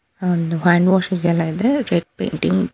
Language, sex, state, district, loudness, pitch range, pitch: Kannada, female, Karnataka, Bangalore, -18 LUFS, 170-190 Hz, 180 Hz